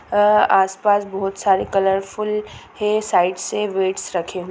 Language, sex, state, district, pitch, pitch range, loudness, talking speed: Hindi, female, Bihar, Gopalganj, 195 Hz, 190-210 Hz, -19 LUFS, 145 wpm